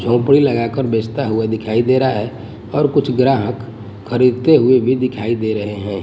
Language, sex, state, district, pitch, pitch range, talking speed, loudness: Hindi, male, Gujarat, Gandhinagar, 120 Hz, 110-130 Hz, 190 wpm, -16 LUFS